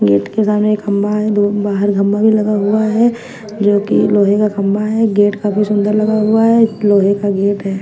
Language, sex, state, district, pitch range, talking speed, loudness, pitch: Hindi, female, Punjab, Fazilka, 200-215 Hz, 215 wpm, -13 LUFS, 210 Hz